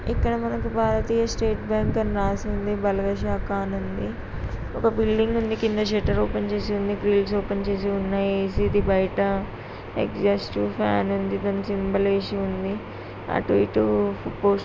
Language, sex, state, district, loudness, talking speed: Telugu, female, Andhra Pradesh, Srikakulam, -24 LUFS, 145 wpm